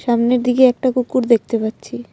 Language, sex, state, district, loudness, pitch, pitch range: Bengali, female, Assam, Kamrup Metropolitan, -16 LUFS, 245 Hz, 230-255 Hz